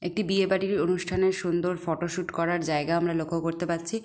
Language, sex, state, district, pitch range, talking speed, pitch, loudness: Bengali, female, West Bengal, Jalpaiguri, 170-185 Hz, 180 wpm, 175 Hz, -27 LUFS